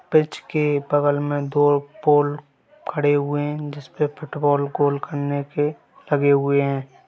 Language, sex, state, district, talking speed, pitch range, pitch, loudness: Hindi, male, Bihar, Gaya, 145 wpm, 145-150 Hz, 145 Hz, -21 LUFS